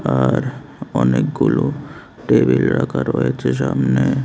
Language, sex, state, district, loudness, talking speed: Bengali, male, Tripura, West Tripura, -18 LUFS, 85 wpm